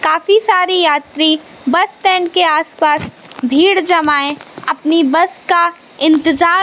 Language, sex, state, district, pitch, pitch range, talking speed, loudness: Hindi, female, Madhya Pradesh, Katni, 325 Hz, 305-360 Hz, 120 wpm, -13 LUFS